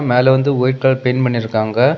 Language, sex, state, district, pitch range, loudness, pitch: Tamil, male, Tamil Nadu, Kanyakumari, 125-130 Hz, -15 LUFS, 125 Hz